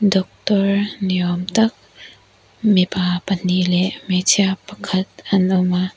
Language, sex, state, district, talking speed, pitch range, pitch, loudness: Mizo, female, Mizoram, Aizawl, 120 wpm, 180-200 Hz, 190 Hz, -18 LUFS